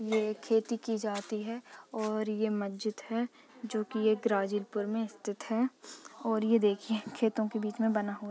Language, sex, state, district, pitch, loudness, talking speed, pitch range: Hindi, female, Uttar Pradesh, Ghazipur, 220 Hz, -33 LUFS, 185 wpm, 210-225 Hz